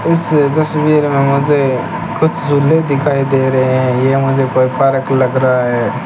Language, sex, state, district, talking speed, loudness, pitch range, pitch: Hindi, male, Rajasthan, Bikaner, 170 wpm, -13 LUFS, 130-145 Hz, 135 Hz